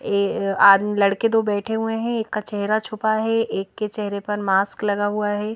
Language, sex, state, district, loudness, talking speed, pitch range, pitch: Hindi, female, Madhya Pradesh, Bhopal, -21 LUFS, 215 wpm, 200-220 Hz, 210 Hz